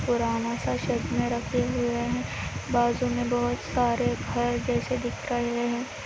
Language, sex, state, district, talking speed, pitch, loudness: Hindi, female, Andhra Pradesh, Anantapur, 140 wpm, 230 Hz, -27 LUFS